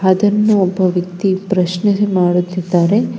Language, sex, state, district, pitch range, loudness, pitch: Kannada, female, Karnataka, Bangalore, 180-205 Hz, -15 LUFS, 185 Hz